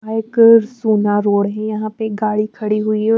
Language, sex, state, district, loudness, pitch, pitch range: Hindi, female, Bihar, West Champaran, -16 LUFS, 215 Hz, 210-225 Hz